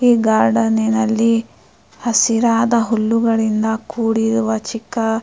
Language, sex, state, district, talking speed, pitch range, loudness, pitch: Kannada, female, Karnataka, Mysore, 70 wpm, 220-230 Hz, -16 LUFS, 225 Hz